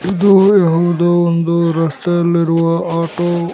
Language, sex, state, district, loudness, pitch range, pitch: Kannada, male, Karnataka, Bellary, -13 LUFS, 165-175 Hz, 170 Hz